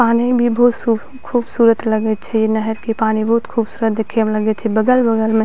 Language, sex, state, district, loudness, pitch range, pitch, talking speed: Maithili, female, Bihar, Purnia, -16 LUFS, 220-235 Hz, 225 Hz, 220 wpm